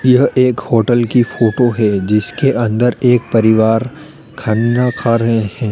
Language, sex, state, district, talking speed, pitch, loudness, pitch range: Hindi, male, Uttar Pradesh, Lalitpur, 145 wpm, 120 Hz, -13 LUFS, 110-125 Hz